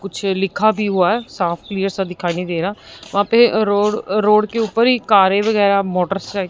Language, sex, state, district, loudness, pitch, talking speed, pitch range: Hindi, female, Punjab, Fazilka, -17 LUFS, 200 Hz, 210 wpm, 190-215 Hz